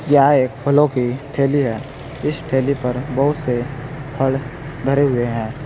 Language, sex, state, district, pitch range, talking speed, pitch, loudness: Hindi, male, Uttar Pradesh, Saharanpur, 125-140 Hz, 160 wpm, 135 Hz, -19 LUFS